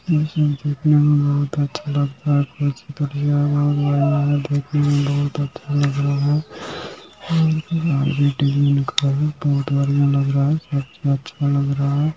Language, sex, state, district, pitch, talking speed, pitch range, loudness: Hindi, male, Bihar, Gaya, 145 Hz, 45 wpm, 140-150 Hz, -19 LUFS